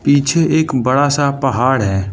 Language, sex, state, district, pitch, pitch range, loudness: Hindi, male, Arunachal Pradesh, Lower Dibang Valley, 140 Hz, 130-145 Hz, -14 LUFS